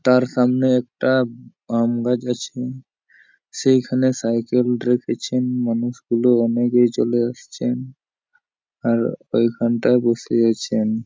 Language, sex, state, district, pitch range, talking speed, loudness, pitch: Bengali, male, West Bengal, Jhargram, 115-125 Hz, 105 wpm, -20 LUFS, 120 Hz